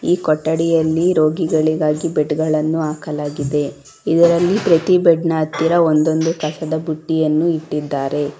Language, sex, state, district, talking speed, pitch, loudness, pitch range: Kannada, female, Karnataka, Bangalore, 115 wpm, 155 Hz, -17 LUFS, 150-165 Hz